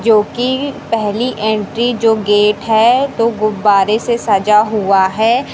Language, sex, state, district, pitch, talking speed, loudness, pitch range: Hindi, male, Madhya Pradesh, Katni, 220 Hz, 130 wpm, -13 LUFS, 210-235 Hz